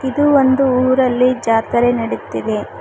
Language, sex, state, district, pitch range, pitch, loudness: Kannada, female, Karnataka, Koppal, 235-265 Hz, 255 Hz, -15 LUFS